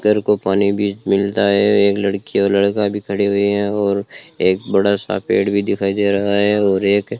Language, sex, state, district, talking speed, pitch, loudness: Hindi, male, Rajasthan, Bikaner, 225 wpm, 100 Hz, -16 LUFS